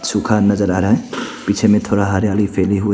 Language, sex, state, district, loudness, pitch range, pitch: Hindi, male, Arunachal Pradesh, Papum Pare, -16 LUFS, 100-105 Hz, 100 Hz